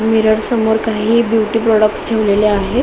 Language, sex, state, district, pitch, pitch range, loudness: Marathi, female, Maharashtra, Solapur, 220 Hz, 215-225 Hz, -14 LUFS